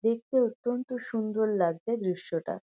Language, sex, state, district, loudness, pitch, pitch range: Bengali, female, West Bengal, Kolkata, -30 LUFS, 225 Hz, 190-245 Hz